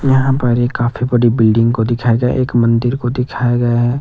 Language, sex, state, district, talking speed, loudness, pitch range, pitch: Hindi, male, Himachal Pradesh, Shimla, 225 wpm, -14 LUFS, 120-125 Hz, 120 Hz